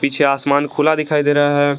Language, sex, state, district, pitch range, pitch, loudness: Hindi, male, Jharkhand, Garhwa, 140-150 Hz, 145 Hz, -16 LUFS